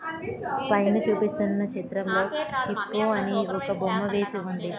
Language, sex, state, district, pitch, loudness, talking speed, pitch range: Telugu, female, Andhra Pradesh, Srikakulam, 205 Hz, -26 LUFS, 115 wpm, 195-215 Hz